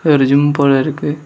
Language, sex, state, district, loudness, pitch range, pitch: Tamil, male, Tamil Nadu, Kanyakumari, -13 LUFS, 140-150 Hz, 145 Hz